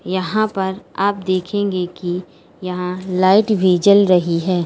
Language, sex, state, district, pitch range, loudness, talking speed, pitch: Hindi, female, Uttar Pradesh, Lalitpur, 180-200 Hz, -17 LUFS, 140 wpm, 185 Hz